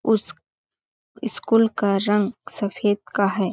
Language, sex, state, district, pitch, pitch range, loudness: Hindi, female, Chhattisgarh, Balrampur, 205 Hz, 195-215 Hz, -22 LUFS